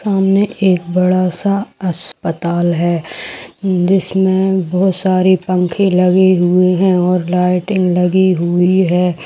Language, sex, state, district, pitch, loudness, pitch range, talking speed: Hindi, female, Bihar, Madhepura, 185 Hz, -14 LUFS, 180-190 Hz, 130 wpm